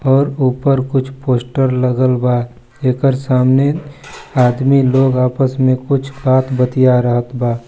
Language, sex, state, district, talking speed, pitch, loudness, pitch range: Hindi, male, Chhattisgarh, Balrampur, 115 wpm, 130 Hz, -14 LUFS, 125-135 Hz